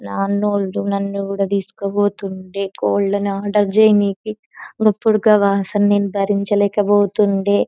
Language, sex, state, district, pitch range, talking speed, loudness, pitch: Telugu, female, Telangana, Nalgonda, 200-205 Hz, 115 wpm, -17 LUFS, 200 Hz